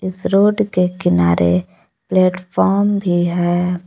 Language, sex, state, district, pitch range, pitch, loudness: Hindi, female, Jharkhand, Palamu, 175-190 Hz, 180 Hz, -16 LUFS